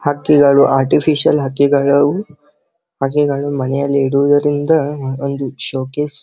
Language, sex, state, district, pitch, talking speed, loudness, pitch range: Kannada, male, Karnataka, Belgaum, 145 Hz, 95 wpm, -14 LUFS, 140-150 Hz